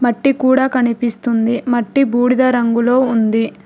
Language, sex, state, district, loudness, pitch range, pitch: Telugu, female, Telangana, Hyderabad, -15 LUFS, 235-260 Hz, 245 Hz